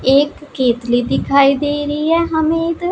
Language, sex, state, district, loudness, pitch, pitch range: Hindi, female, Punjab, Pathankot, -16 LUFS, 290 Hz, 275-320 Hz